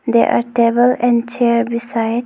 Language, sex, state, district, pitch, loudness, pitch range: English, female, Arunachal Pradesh, Longding, 235 Hz, -15 LUFS, 235-240 Hz